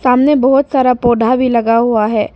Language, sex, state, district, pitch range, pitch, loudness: Hindi, female, Arunachal Pradesh, Papum Pare, 230-260 Hz, 250 Hz, -12 LUFS